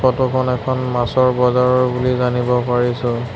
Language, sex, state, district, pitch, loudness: Assamese, male, Assam, Sonitpur, 125 Hz, -17 LUFS